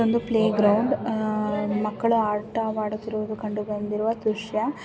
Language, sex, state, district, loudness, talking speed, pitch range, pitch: Kannada, female, Karnataka, Bijapur, -25 LUFS, 110 wpm, 210-225 Hz, 215 Hz